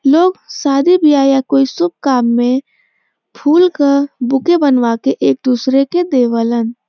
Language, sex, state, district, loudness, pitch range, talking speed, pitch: Bhojpuri, female, Uttar Pradesh, Varanasi, -13 LUFS, 250-310 Hz, 150 wpm, 275 Hz